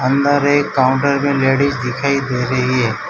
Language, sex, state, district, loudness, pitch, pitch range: Hindi, male, Gujarat, Valsad, -16 LUFS, 135 Hz, 130-140 Hz